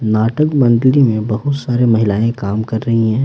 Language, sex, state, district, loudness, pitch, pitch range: Hindi, male, Bihar, Patna, -14 LUFS, 115 Hz, 110-130 Hz